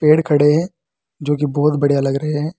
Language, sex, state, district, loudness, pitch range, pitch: Hindi, male, Uttar Pradesh, Saharanpur, -16 LUFS, 145-155 Hz, 150 Hz